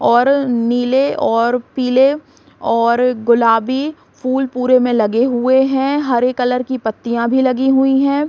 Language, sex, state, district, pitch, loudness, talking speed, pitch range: Hindi, female, Bihar, Saran, 255 Hz, -15 LUFS, 150 wpm, 240-265 Hz